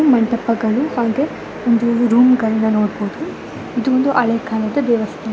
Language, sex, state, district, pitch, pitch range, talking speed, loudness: Kannada, female, Karnataka, Bellary, 235 Hz, 220-250 Hz, 100 wpm, -17 LUFS